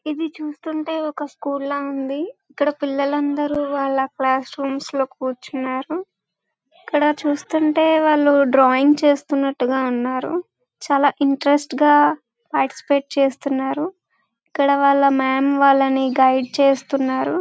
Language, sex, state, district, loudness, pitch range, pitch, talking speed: Telugu, female, Andhra Pradesh, Visakhapatnam, -19 LUFS, 270-300 Hz, 280 Hz, 105 wpm